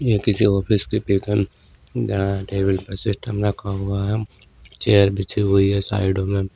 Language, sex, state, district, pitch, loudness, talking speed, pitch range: Hindi, male, Maharashtra, Washim, 100 Hz, -21 LUFS, 175 wpm, 100-105 Hz